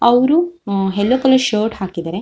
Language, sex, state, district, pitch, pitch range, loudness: Kannada, female, Karnataka, Shimoga, 220 Hz, 195-260 Hz, -16 LUFS